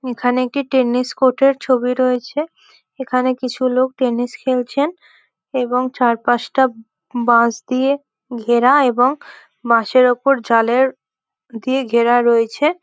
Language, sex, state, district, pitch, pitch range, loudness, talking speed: Bengali, female, West Bengal, Malda, 255 Hz, 240-265 Hz, -16 LUFS, 110 wpm